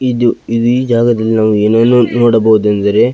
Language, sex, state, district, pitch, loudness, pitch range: Kannada, male, Karnataka, Belgaum, 115 Hz, -11 LUFS, 110-120 Hz